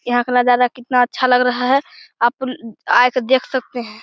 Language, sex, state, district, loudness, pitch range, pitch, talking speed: Hindi, male, Bihar, Begusarai, -16 LUFS, 245-260 Hz, 250 Hz, 210 wpm